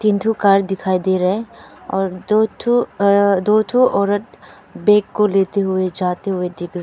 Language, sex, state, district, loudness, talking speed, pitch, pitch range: Hindi, female, Arunachal Pradesh, Papum Pare, -17 LUFS, 175 wpm, 200 Hz, 185-210 Hz